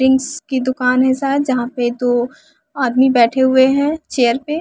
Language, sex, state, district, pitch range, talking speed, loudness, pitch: Hindi, female, Bihar, West Champaran, 250-275 Hz, 180 wpm, -16 LUFS, 260 Hz